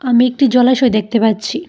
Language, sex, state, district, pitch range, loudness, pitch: Bengali, female, Tripura, Dhalai, 225-255 Hz, -13 LUFS, 250 Hz